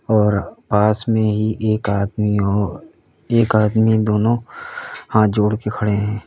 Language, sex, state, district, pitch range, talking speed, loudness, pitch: Hindi, male, Uttar Pradesh, Lalitpur, 105-110 Hz, 135 wpm, -18 LUFS, 105 Hz